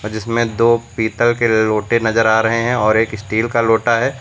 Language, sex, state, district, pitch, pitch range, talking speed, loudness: Hindi, male, Uttar Pradesh, Lucknow, 115 Hz, 110-115 Hz, 215 wpm, -16 LUFS